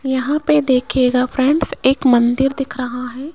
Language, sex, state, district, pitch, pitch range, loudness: Hindi, female, Rajasthan, Jaipur, 260 Hz, 250-280 Hz, -16 LUFS